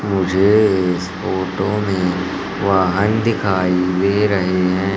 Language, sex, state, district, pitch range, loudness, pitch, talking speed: Hindi, male, Madhya Pradesh, Katni, 90-100 Hz, -17 LUFS, 95 Hz, 110 wpm